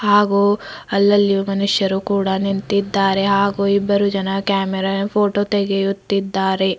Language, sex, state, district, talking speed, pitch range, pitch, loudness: Kannada, female, Karnataka, Bidar, 95 wpm, 195-200 Hz, 200 Hz, -18 LUFS